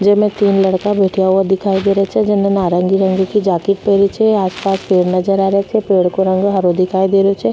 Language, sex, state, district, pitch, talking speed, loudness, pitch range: Rajasthani, female, Rajasthan, Nagaur, 195 Hz, 245 wpm, -14 LUFS, 190-200 Hz